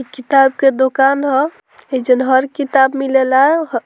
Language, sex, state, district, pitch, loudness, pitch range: Bhojpuri, female, Bihar, Muzaffarpur, 270 Hz, -14 LUFS, 260-280 Hz